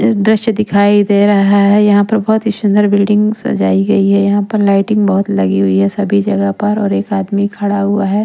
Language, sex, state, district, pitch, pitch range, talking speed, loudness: Hindi, female, Punjab, Pathankot, 205 Hz, 200-210 Hz, 220 wpm, -12 LUFS